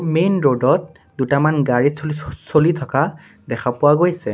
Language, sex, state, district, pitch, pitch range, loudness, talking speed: Assamese, male, Assam, Sonitpur, 145 Hz, 130-160 Hz, -18 LUFS, 150 wpm